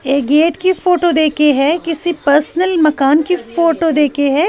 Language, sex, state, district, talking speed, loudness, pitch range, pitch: Hindi, female, Haryana, Charkhi Dadri, 175 wpm, -13 LUFS, 290-345 Hz, 310 Hz